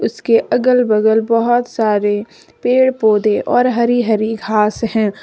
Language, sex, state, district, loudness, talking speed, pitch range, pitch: Hindi, female, Jharkhand, Deoghar, -15 LUFS, 135 wpm, 215-240 Hz, 225 Hz